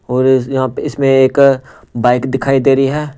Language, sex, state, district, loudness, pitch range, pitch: Hindi, male, Punjab, Pathankot, -13 LUFS, 130-135 Hz, 135 Hz